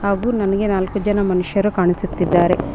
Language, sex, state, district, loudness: Kannada, male, Karnataka, Bangalore, -18 LUFS